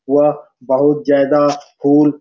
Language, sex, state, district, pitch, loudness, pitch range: Hindi, male, Bihar, Supaul, 145 Hz, -14 LUFS, 140-150 Hz